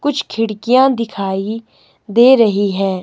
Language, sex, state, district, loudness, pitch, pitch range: Hindi, male, Himachal Pradesh, Shimla, -14 LUFS, 225 Hz, 200-245 Hz